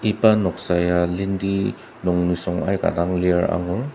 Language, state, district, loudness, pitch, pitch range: Ao, Nagaland, Dimapur, -21 LUFS, 90 Hz, 90-95 Hz